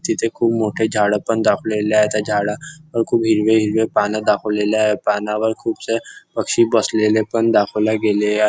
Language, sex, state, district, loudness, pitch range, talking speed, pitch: Marathi, male, Maharashtra, Nagpur, -18 LUFS, 105-110 Hz, 170 wpm, 110 Hz